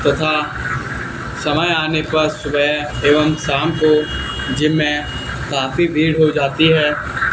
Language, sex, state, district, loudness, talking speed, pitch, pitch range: Hindi, male, Haryana, Charkhi Dadri, -17 LUFS, 125 wpm, 150 Hz, 145-155 Hz